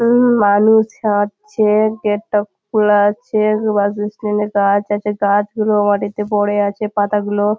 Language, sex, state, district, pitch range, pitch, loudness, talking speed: Bengali, female, West Bengal, Malda, 205-215 Hz, 210 Hz, -16 LUFS, 125 wpm